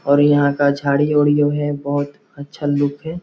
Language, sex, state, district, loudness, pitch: Hindi, male, Bihar, Gopalganj, -17 LUFS, 145 Hz